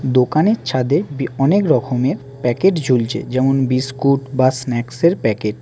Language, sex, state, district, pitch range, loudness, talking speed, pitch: Bengali, male, West Bengal, Alipurduar, 125-140 Hz, -17 LUFS, 140 wpm, 130 Hz